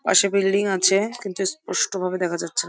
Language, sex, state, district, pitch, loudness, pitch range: Bengali, female, West Bengal, Jhargram, 195 Hz, -21 LUFS, 185-200 Hz